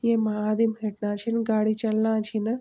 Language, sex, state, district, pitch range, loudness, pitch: Garhwali, female, Uttarakhand, Tehri Garhwal, 215-225 Hz, -25 LUFS, 220 Hz